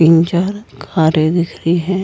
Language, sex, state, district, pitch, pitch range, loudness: Hindi, female, Goa, North and South Goa, 170 Hz, 165-185 Hz, -15 LUFS